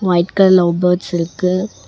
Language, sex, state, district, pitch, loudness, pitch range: Tamil, female, Tamil Nadu, Namakkal, 180 Hz, -15 LUFS, 175-185 Hz